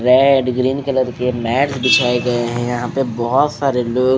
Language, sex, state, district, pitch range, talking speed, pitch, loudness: Hindi, male, Odisha, Malkangiri, 120-135 Hz, 185 wpm, 125 Hz, -16 LUFS